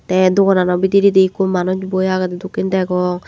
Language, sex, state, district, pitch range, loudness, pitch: Chakma, female, Tripura, Dhalai, 185-190 Hz, -15 LUFS, 185 Hz